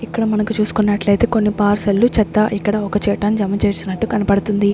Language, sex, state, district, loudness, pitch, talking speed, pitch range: Telugu, female, Andhra Pradesh, Sri Satya Sai, -17 LUFS, 210 Hz, 150 wpm, 205-215 Hz